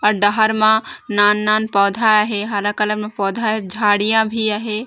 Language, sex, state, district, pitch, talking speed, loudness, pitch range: Chhattisgarhi, female, Chhattisgarh, Raigarh, 210 Hz, 170 wpm, -16 LUFS, 205-220 Hz